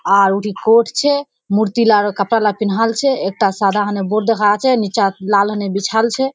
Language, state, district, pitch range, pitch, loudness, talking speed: Surjapuri, Bihar, Kishanganj, 200-230 Hz, 210 Hz, -15 LUFS, 180 wpm